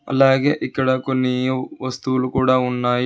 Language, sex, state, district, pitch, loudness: Telugu, male, Telangana, Hyderabad, 130 Hz, -19 LUFS